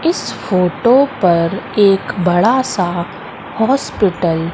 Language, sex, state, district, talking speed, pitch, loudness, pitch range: Hindi, female, Madhya Pradesh, Katni, 90 wpm, 195 Hz, -15 LUFS, 175-250 Hz